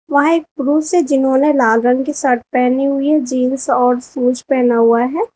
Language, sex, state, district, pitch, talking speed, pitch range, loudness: Hindi, female, Uttar Pradesh, Lalitpur, 265 Hz, 190 wpm, 250-295 Hz, -14 LUFS